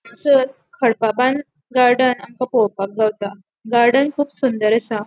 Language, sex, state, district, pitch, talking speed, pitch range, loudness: Konkani, female, Goa, North and South Goa, 235 Hz, 120 wpm, 215-260 Hz, -18 LUFS